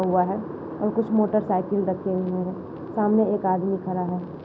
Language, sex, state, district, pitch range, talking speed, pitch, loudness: Hindi, female, Bihar, Saharsa, 185-210 Hz, 175 wpm, 185 Hz, -24 LUFS